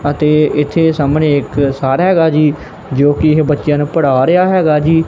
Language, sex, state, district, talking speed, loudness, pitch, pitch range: Punjabi, male, Punjab, Kapurthala, 165 wpm, -12 LUFS, 150 Hz, 145-160 Hz